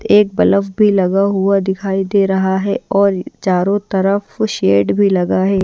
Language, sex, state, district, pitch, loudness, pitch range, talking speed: Hindi, female, Maharashtra, Washim, 195 Hz, -15 LUFS, 190-200 Hz, 170 wpm